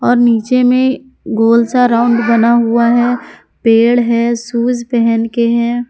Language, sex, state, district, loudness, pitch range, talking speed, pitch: Hindi, female, Jharkhand, Palamu, -12 LUFS, 235-245 Hz, 150 wpm, 235 Hz